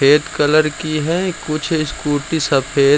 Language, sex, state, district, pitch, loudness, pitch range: Hindi, male, Bihar, Jamui, 155 Hz, -17 LUFS, 145-160 Hz